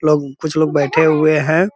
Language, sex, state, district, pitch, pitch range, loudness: Hindi, male, Bihar, Purnia, 155 Hz, 150-160 Hz, -15 LUFS